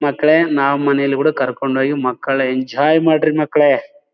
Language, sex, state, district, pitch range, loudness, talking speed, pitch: Kannada, male, Karnataka, Bellary, 135-155 Hz, -15 LUFS, 145 wpm, 145 Hz